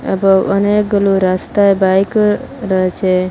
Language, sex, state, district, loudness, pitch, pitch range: Bengali, female, Assam, Hailakandi, -13 LUFS, 195 Hz, 190-205 Hz